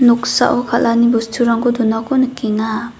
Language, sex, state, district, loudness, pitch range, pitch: Garo, female, Meghalaya, South Garo Hills, -15 LUFS, 225-245 Hz, 235 Hz